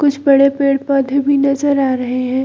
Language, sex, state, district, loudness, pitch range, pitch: Hindi, female, Bihar, Samastipur, -14 LUFS, 265-280 Hz, 275 Hz